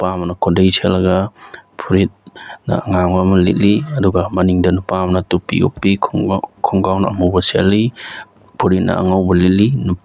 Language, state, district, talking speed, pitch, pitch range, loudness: Manipuri, Manipur, Imphal West, 135 wpm, 95 Hz, 90-95 Hz, -15 LUFS